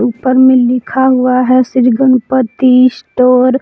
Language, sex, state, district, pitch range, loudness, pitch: Hindi, female, Jharkhand, Palamu, 250-260 Hz, -10 LUFS, 255 Hz